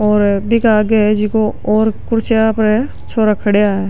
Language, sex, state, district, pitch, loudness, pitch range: Rajasthani, male, Rajasthan, Nagaur, 215 Hz, -14 LUFS, 210-220 Hz